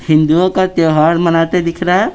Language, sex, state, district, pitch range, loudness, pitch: Hindi, male, Bihar, Patna, 160-180 Hz, -12 LUFS, 170 Hz